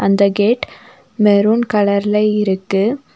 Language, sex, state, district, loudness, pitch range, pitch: Tamil, female, Tamil Nadu, Nilgiris, -15 LUFS, 200-220 Hz, 205 Hz